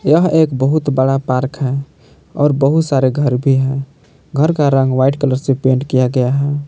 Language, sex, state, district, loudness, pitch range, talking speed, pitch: Hindi, male, Jharkhand, Palamu, -15 LUFS, 130-145 Hz, 195 wpm, 135 Hz